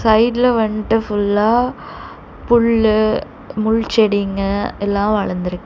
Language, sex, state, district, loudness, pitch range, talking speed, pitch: Tamil, female, Tamil Nadu, Chennai, -16 LUFS, 205-230 Hz, 85 wpm, 215 Hz